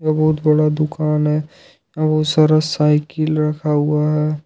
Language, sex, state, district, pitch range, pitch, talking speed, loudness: Hindi, male, Jharkhand, Ranchi, 150-155 Hz, 155 Hz, 135 wpm, -17 LUFS